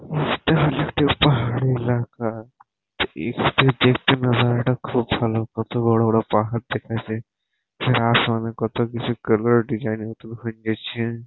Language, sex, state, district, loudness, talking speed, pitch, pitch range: Bengali, male, West Bengal, Purulia, -21 LUFS, 120 wpm, 115 Hz, 115-125 Hz